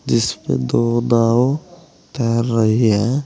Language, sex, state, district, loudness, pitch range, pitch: Hindi, male, Uttar Pradesh, Saharanpur, -17 LUFS, 110-130 Hz, 115 Hz